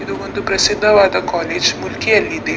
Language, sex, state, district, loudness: Kannada, female, Karnataka, Dakshina Kannada, -15 LUFS